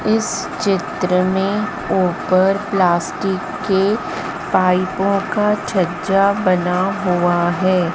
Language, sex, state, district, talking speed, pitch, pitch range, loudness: Hindi, female, Madhya Pradesh, Dhar, 90 wpm, 185 Hz, 180-200 Hz, -17 LUFS